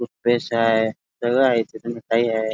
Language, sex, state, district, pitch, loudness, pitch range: Marathi, male, Karnataka, Belgaum, 115 Hz, -21 LUFS, 110-120 Hz